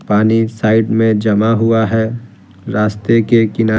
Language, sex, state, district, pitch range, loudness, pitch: Hindi, male, Bihar, Patna, 105-115 Hz, -13 LUFS, 110 Hz